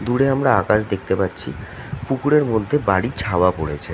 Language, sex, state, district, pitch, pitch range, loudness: Bengali, male, West Bengal, North 24 Parganas, 110 Hz, 95-135 Hz, -19 LUFS